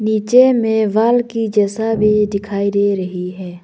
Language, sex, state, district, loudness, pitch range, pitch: Hindi, female, Arunachal Pradesh, Longding, -15 LUFS, 200-225 Hz, 210 Hz